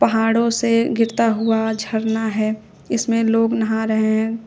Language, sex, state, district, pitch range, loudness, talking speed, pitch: Hindi, female, Uttar Pradesh, Shamli, 220-230 Hz, -19 LUFS, 150 wpm, 225 Hz